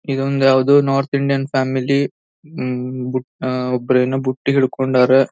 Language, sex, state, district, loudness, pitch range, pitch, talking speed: Kannada, male, Karnataka, Belgaum, -17 LUFS, 130-140 Hz, 130 Hz, 115 wpm